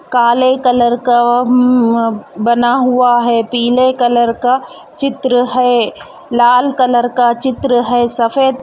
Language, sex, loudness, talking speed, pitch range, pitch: Hindi, female, -12 LUFS, 130 wpm, 240-255 Hz, 245 Hz